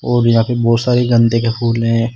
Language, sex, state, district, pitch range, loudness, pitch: Hindi, male, Uttar Pradesh, Shamli, 115-120 Hz, -14 LUFS, 115 Hz